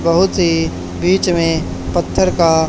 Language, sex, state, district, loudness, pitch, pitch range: Hindi, male, Haryana, Charkhi Dadri, -15 LUFS, 170 Hz, 165-180 Hz